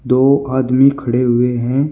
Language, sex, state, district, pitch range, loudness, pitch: Hindi, male, Uttar Pradesh, Shamli, 125-135 Hz, -14 LUFS, 130 Hz